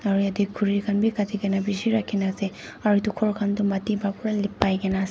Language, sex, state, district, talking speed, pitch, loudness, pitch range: Nagamese, female, Nagaland, Dimapur, 295 wpm, 205 Hz, -25 LUFS, 195-210 Hz